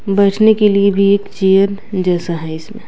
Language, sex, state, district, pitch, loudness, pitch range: Hindi, female, Bihar, West Champaran, 200 Hz, -13 LUFS, 190-205 Hz